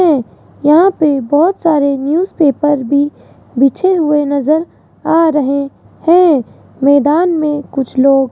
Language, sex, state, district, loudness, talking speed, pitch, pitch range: Hindi, female, Rajasthan, Jaipur, -12 LUFS, 130 wpm, 295 Hz, 280-325 Hz